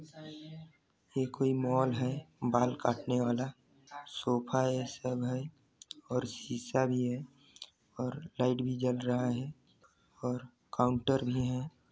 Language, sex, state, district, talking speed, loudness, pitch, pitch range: Hindi, male, Chhattisgarh, Sarguja, 130 wpm, -34 LUFS, 125 Hz, 125-140 Hz